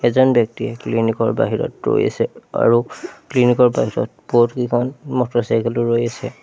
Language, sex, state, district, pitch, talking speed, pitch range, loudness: Assamese, male, Assam, Sonitpur, 120 Hz, 160 wpm, 115-125 Hz, -18 LUFS